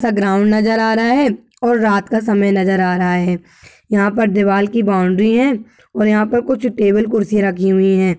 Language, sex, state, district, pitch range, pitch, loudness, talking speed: Hindi, female, Uttar Pradesh, Budaun, 195-225 Hz, 210 Hz, -15 LUFS, 210 wpm